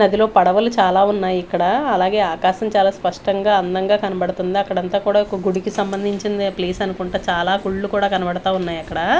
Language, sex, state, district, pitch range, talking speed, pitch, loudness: Telugu, female, Andhra Pradesh, Manyam, 185-200 Hz, 165 wpm, 195 Hz, -18 LUFS